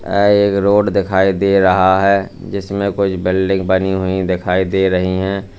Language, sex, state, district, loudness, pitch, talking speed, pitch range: Hindi, male, Uttar Pradesh, Lalitpur, -15 LUFS, 95 Hz, 170 wpm, 95-100 Hz